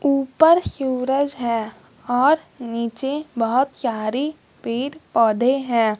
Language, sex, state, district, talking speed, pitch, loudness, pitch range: Hindi, male, Bihar, West Champaran, 100 wpm, 255 Hz, -21 LUFS, 230-275 Hz